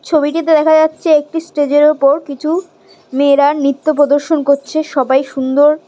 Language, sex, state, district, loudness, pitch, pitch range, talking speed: Bengali, female, West Bengal, Jhargram, -13 LUFS, 295 Hz, 280-315 Hz, 145 wpm